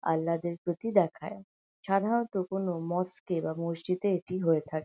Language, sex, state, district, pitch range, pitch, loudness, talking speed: Bengali, female, West Bengal, North 24 Parganas, 165-195 Hz, 180 Hz, -31 LUFS, 150 wpm